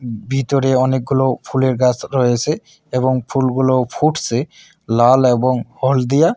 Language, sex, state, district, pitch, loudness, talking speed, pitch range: Bengali, male, West Bengal, Alipurduar, 130 Hz, -16 LUFS, 105 wpm, 125-135 Hz